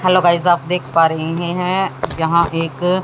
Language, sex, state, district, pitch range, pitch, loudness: Hindi, female, Haryana, Jhajjar, 165-180 Hz, 170 Hz, -16 LUFS